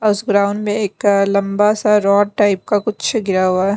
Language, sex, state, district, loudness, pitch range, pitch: Hindi, female, Delhi, New Delhi, -16 LUFS, 200-210 Hz, 205 Hz